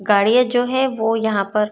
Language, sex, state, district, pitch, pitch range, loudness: Hindi, female, Maharashtra, Chandrapur, 220 Hz, 210-245 Hz, -18 LUFS